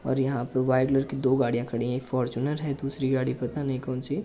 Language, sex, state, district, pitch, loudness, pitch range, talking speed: Hindi, male, Uttar Pradesh, Jalaun, 130 Hz, -27 LUFS, 125-135 Hz, 280 wpm